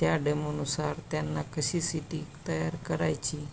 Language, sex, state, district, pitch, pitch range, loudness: Marathi, male, Maharashtra, Pune, 150 Hz, 125-155 Hz, -31 LUFS